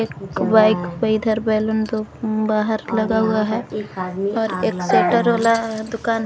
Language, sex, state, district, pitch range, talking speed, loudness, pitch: Hindi, female, Jharkhand, Garhwa, 215-225 Hz, 145 wpm, -19 LUFS, 220 Hz